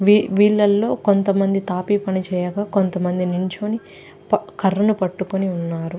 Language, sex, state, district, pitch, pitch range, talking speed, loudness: Telugu, female, Andhra Pradesh, Chittoor, 195 Hz, 185-205 Hz, 100 wpm, -20 LUFS